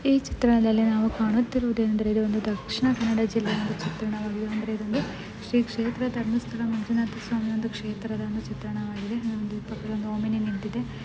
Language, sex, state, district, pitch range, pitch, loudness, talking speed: Kannada, female, Karnataka, Dakshina Kannada, 215-230 Hz, 220 Hz, -27 LUFS, 145 wpm